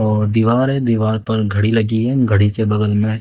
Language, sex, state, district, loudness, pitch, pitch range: Hindi, male, Haryana, Jhajjar, -16 LUFS, 110 Hz, 105-115 Hz